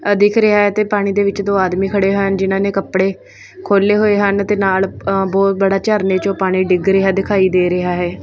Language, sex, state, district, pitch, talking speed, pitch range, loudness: Punjabi, female, Punjab, Fazilka, 195 Hz, 225 wpm, 190-205 Hz, -15 LUFS